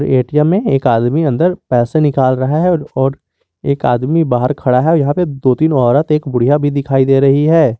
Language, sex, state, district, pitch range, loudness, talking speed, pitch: Hindi, male, Jharkhand, Garhwa, 130-155 Hz, -13 LUFS, 205 wpm, 140 Hz